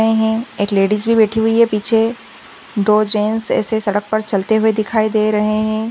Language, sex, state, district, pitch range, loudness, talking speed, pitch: Hindi, female, Maharashtra, Aurangabad, 210-220 Hz, -16 LUFS, 185 wpm, 215 Hz